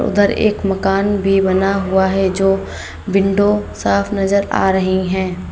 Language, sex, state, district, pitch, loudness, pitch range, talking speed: Hindi, female, Uttar Pradesh, Saharanpur, 195 Hz, -16 LUFS, 190-200 Hz, 150 wpm